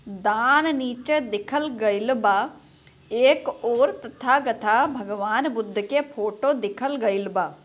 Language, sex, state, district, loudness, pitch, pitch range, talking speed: Bhojpuri, female, Bihar, Gopalganj, -23 LUFS, 235 Hz, 210-285 Hz, 125 wpm